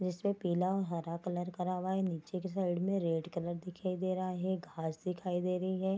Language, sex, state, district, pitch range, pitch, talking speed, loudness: Hindi, female, Bihar, Darbhanga, 175-185 Hz, 180 Hz, 230 wpm, -36 LUFS